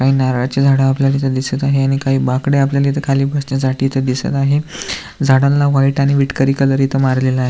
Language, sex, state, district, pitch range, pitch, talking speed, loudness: Marathi, male, Maharashtra, Aurangabad, 135-140 Hz, 135 Hz, 200 wpm, -15 LUFS